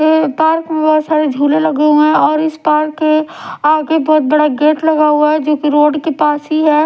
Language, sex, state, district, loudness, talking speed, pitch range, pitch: Hindi, female, Odisha, Sambalpur, -12 LUFS, 235 wpm, 300-310 Hz, 305 Hz